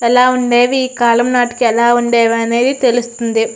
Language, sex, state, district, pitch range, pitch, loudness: Telugu, female, Andhra Pradesh, Srikakulam, 235-250 Hz, 240 Hz, -13 LUFS